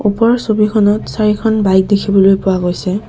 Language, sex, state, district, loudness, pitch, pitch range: Assamese, female, Assam, Kamrup Metropolitan, -13 LUFS, 205 Hz, 195-215 Hz